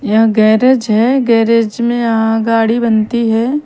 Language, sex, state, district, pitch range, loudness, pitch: Hindi, female, Haryana, Charkhi Dadri, 225-235 Hz, -12 LUFS, 230 Hz